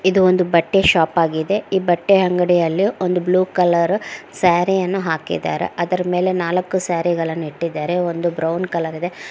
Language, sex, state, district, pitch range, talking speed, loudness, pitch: Kannada, female, Karnataka, Mysore, 170-185 Hz, 155 wpm, -18 LUFS, 180 Hz